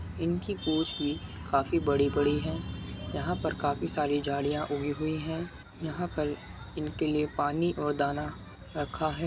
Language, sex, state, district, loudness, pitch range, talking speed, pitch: Hindi, male, Uttar Pradesh, Muzaffarnagar, -31 LUFS, 140-155 Hz, 155 wpm, 150 Hz